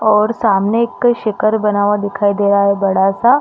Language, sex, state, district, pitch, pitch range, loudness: Hindi, female, Chhattisgarh, Bastar, 210 Hz, 200-220 Hz, -14 LUFS